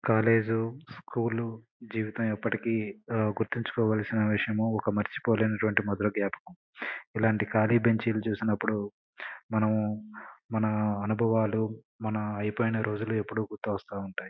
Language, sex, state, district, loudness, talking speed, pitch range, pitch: Telugu, male, Andhra Pradesh, Srikakulam, -29 LUFS, 90 wpm, 105-115 Hz, 110 Hz